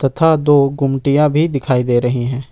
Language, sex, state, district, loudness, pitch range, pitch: Hindi, male, Jharkhand, Ranchi, -15 LUFS, 130-145 Hz, 140 Hz